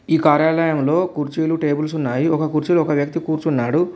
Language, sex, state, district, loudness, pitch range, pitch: Telugu, male, Telangana, Komaram Bheem, -18 LUFS, 150-165 Hz, 155 Hz